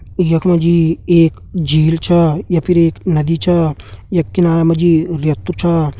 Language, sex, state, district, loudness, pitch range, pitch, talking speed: Hindi, male, Uttarakhand, Uttarkashi, -14 LUFS, 160-175 Hz, 165 Hz, 170 wpm